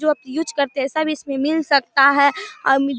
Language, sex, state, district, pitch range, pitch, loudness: Hindi, female, Bihar, Darbhanga, 270-305 Hz, 280 Hz, -18 LUFS